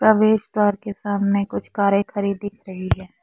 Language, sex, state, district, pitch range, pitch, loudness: Hindi, female, Assam, Kamrup Metropolitan, 200-210 Hz, 205 Hz, -21 LUFS